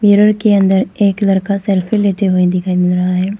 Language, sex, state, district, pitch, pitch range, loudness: Hindi, female, Arunachal Pradesh, Papum Pare, 195 Hz, 185-205 Hz, -13 LUFS